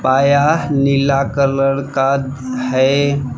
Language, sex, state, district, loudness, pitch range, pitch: Hindi, male, Jharkhand, Palamu, -15 LUFS, 130-140 Hz, 135 Hz